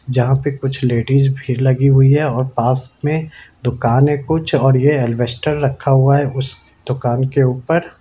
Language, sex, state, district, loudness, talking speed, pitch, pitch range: Hindi, male, Bihar, Lakhisarai, -16 LUFS, 180 wpm, 135 Hz, 125-145 Hz